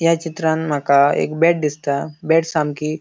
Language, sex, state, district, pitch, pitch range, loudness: Konkani, male, Goa, North and South Goa, 155 Hz, 145-165 Hz, -18 LUFS